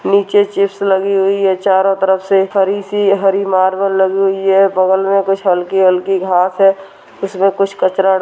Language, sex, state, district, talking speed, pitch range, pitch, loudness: Hindi, female, Uttarakhand, Tehri Garhwal, 190 wpm, 190-195 Hz, 195 Hz, -13 LUFS